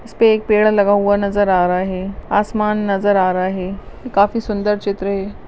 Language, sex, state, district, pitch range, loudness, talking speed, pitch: Hindi, female, Rajasthan, Nagaur, 195-210 Hz, -17 LUFS, 210 wpm, 205 Hz